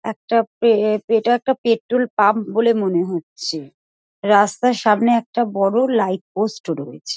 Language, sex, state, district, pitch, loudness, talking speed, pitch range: Bengali, female, West Bengal, North 24 Parganas, 220 Hz, -18 LUFS, 135 wpm, 195-235 Hz